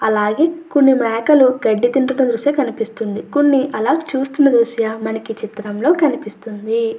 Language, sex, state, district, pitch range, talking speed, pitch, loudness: Telugu, female, Andhra Pradesh, Chittoor, 220-280 Hz, 120 wpm, 240 Hz, -16 LUFS